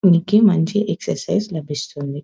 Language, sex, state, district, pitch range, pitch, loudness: Telugu, female, Telangana, Nalgonda, 145-205 Hz, 170 Hz, -19 LUFS